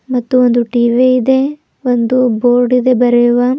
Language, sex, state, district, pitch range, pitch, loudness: Kannada, female, Karnataka, Bidar, 245-255 Hz, 250 Hz, -12 LUFS